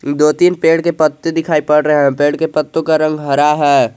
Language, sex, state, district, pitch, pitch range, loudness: Hindi, male, Jharkhand, Garhwa, 150 Hz, 145-160 Hz, -13 LUFS